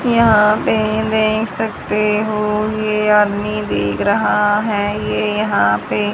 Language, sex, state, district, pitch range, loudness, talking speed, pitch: Hindi, female, Haryana, Rohtak, 205-215 Hz, -16 LUFS, 125 wpm, 210 Hz